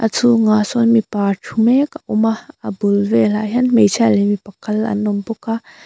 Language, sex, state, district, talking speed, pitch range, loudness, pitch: Mizo, female, Mizoram, Aizawl, 205 wpm, 210-230 Hz, -16 LUFS, 220 Hz